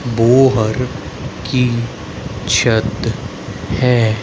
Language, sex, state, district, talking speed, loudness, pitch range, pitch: Hindi, male, Haryana, Rohtak, 55 wpm, -16 LUFS, 105-125 Hz, 115 Hz